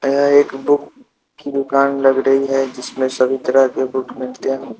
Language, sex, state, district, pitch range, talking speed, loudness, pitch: Hindi, male, Bihar, Patna, 130-140 Hz, 185 wpm, -17 LUFS, 135 Hz